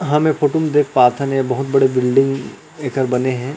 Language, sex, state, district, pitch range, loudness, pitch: Chhattisgarhi, male, Chhattisgarh, Rajnandgaon, 130-145 Hz, -16 LUFS, 135 Hz